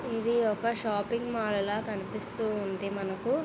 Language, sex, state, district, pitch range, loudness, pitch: Telugu, female, Andhra Pradesh, Visakhapatnam, 200-235 Hz, -31 LUFS, 215 Hz